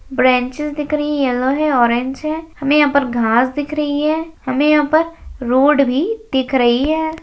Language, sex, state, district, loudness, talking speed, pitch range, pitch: Hindi, female, Rajasthan, Nagaur, -16 LUFS, 190 wpm, 255-300 Hz, 290 Hz